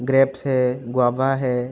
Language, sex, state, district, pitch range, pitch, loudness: Hindi, male, Uttar Pradesh, Jalaun, 125-135 Hz, 130 Hz, -20 LUFS